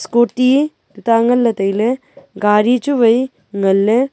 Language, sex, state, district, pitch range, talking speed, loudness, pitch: Wancho, female, Arunachal Pradesh, Longding, 210-255 Hz, 145 wpm, -15 LUFS, 235 Hz